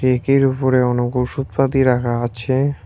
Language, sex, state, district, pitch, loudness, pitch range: Bengali, male, West Bengal, Cooch Behar, 130 Hz, -18 LUFS, 125-135 Hz